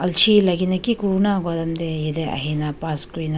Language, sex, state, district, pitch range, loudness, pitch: Nagamese, female, Nagaland, Dimapur, 155-190 Hz, -18 LUFS, 165 Hz